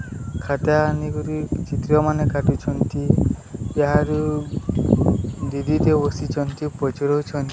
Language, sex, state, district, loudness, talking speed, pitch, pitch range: Odia, male, Odisha, Sambalpur, -21 LUFS, 65 wpm, 145 Hz, 135-150 Hz